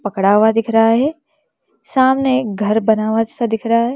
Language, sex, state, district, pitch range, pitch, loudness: Hindi, female, Uttar Pradesh, Lalitpur, 220-260 Hz, 225 Hz, -15 LUFS